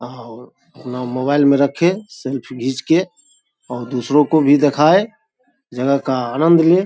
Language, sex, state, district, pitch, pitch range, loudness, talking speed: Hindi, male, Bihar, Saharsa, 145 Hz, 130-180 Hz, -16 LUFS, 155 wpm